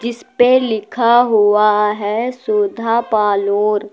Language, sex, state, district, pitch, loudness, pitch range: Hindi, female, Uttar Pradesh, Lucknow, 215 Hz, -15 LUFS, 210-235 Hz